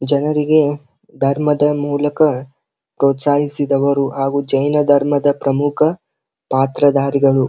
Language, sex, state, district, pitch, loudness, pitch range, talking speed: Kannada, male, Karnataka, Belgaum, 145 Hz, -16 LUFS, 140-145 Hz, 80 wpm